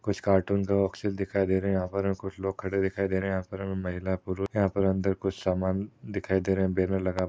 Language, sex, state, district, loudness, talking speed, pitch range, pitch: Hindi, male, Maharashtra, Chandrapur, -28 LUFS, 255 wpm, 95-100 Hz, 95 Hz